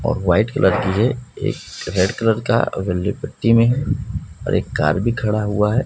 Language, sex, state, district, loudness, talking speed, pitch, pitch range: Hindi, male, Bihar, West Champaran, -19 LUFS, 195 wpm, 110 Hz, 95-120 Hz